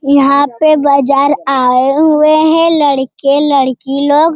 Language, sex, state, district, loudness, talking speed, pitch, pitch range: Hindi, female, Bihar, Jamui, -10 LUFS, 110 wpm, 280 Hz, 275-305 Hz